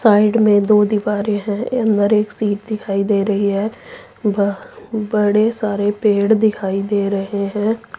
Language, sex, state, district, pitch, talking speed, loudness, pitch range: Hindi, female, Punjab, Pathankot, 210 Hz, 145 wpm, -17 LUFS, 205-215 Hz